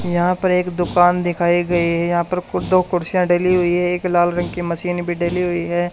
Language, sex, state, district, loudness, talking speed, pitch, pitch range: Hindi, male, Haryana, Charkhi Dadri, -18 LUFS, 245 wpm, 175 Hz, 175-180 Hz